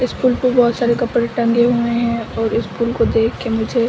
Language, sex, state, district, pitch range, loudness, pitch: Hindi, female, Bihar, Samastipur, 230-240 Hz, -17 LUFS, 235 Hz